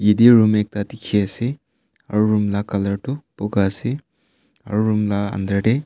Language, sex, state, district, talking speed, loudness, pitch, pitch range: Nagamese, male, Nagaland, Kohima, 175 wpm, -19 LUFS, 105 Hz, 100-115 Hz